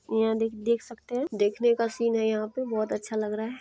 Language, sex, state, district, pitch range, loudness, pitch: Hindi, female, Bihar, Lakhisarai, 215-235 Hz, -28 LUFS, 225 Hz